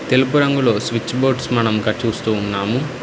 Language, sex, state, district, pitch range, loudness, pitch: Telugu, male, Telangana, Hyderabad, 110-130 Hz, -18 LUFS, 120 Hz